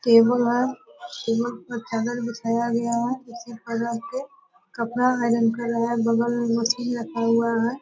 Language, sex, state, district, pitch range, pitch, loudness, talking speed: Hindi, female, Bihar, Purnia, 230-245 Hz, 235 Hz, -24 LUFS, 185 wpm